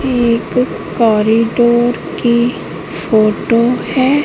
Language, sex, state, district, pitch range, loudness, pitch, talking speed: Hindi, female, Madhya Pradesh, Katni, 230-250 Hz, -13 LUFS, 235 Hz, 70 wpm